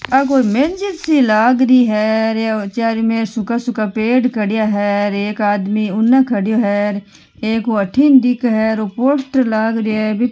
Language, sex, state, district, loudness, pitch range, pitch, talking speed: Marwari, female, Rajasthan, Nagaur, -15 LUFS, 215-250 Hz, 225 Hz, 185 wpm